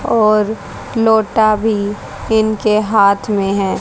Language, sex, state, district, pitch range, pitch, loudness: Hindi, female, Haryana, Jhajjar, 205-220 Hz, 215 Hz, -14 LUFS